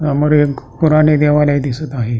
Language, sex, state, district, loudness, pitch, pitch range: Marathi, male, Maharashtra, Pune, -14 LUFS, 150 Hz, 140-150 Hz